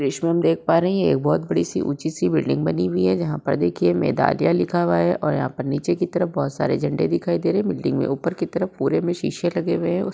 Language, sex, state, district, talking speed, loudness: Hindi, female, Uttar Pradesh, Budaun, 285 wpm, -21 LUFS